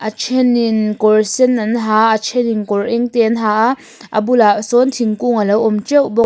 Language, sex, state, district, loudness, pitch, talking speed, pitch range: Mizo, female, Mizoram, Aizawl, -14 LUFS, 225 Hz, 250 wpm, 215-245 Hz